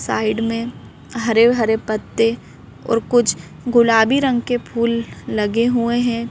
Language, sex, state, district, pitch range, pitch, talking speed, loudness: Hindi, female, Madhya Pradesh, Bhopal, 225-240 Hz, 230 Hz, 135 wpm, -18 LUFS